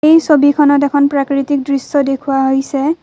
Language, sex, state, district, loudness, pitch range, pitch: Assamese, female, Assam, Kamrup Metropolitan, -13 LUFS, 275-290 Hz, 285 Hz